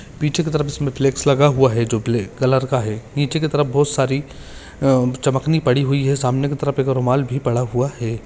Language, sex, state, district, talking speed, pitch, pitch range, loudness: Hindi, male, Maharashtra, Pune, 220 wpm, 135 Hz, 125-145 Hz, -19 LUFS